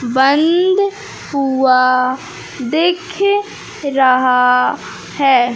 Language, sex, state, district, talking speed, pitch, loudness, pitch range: Hindi, male, Madhya Pradesh, Katni, 55 wpm, 270 Hz, -14 LUFS, 255-345 Hz